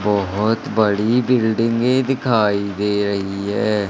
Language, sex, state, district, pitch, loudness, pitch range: Hindi, male, Madhya Pradesh, Katni, 105 Hz, -18 LUFS, 100-115 Hz